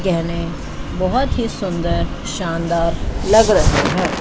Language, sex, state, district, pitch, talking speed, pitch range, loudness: Hindi, female, Chandigarh, Chandigarh, 170 Hz, 115 wpm, 170-195 Hz, -18 LUFS